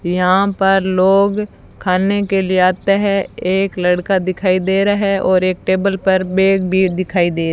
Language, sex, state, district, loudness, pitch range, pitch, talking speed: Hindi, female, Rajasthan, Bikaner, -15 LUFS, 185-195 Hz, 190 Hz, 185 wpm